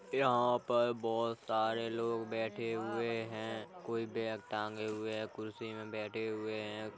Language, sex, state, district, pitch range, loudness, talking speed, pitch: Hindi, male, Uttar Pradesh, Hamirpur, 110-115 Hz, -37 LUFS, 155 wpm, 110 Hz